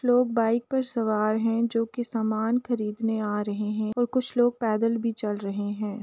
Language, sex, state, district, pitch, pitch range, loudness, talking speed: Hindi, female, Uttar Pradesh, Jalaun, 225 Hz, 215-240 Hz, -26 LUFS, 200 wpm